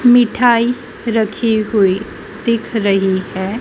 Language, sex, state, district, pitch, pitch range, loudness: Hindi, female, Madhya Pradesh, Dhar, 220 Hz, 200-235 Hz, -15 LUFS